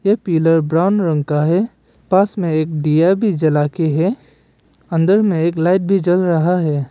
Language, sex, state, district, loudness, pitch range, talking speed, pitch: Hindi, male, Arunachal Pradesh, Papum Pare, -16 LUFS, 160-190 Hz, 190 wpm, 170 Hz